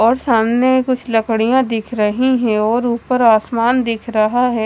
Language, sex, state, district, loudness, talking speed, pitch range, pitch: Hindi, female, Chandigarh, Chandigarh, -15 LUFS, 165 wpm, 225-250 Hz, 235 Hz